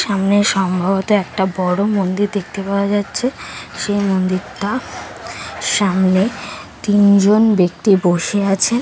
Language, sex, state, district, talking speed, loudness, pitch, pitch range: Bengali, female, West Bengal, Kolkata, 100 wpm, -16 LUFS, 200 Hz, 190-205 Hz